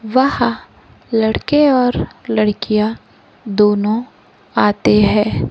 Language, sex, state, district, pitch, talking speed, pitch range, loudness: Hindi, female, Maharashtra, Gondia, 220 Hz, 75 wpm, 210-245 Hz, -15 LUFS